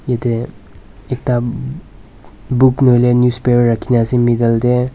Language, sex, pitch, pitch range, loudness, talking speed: Nagamese, male, 120 Hz, 115-125 Hz, -14 LUFS, 110 wpm